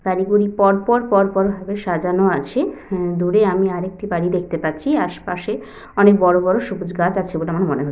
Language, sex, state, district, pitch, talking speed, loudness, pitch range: Bengali, female, West Bengal, Purulia, 190 Hz, 190 wpm, -18 LUFS, 180-200 Hz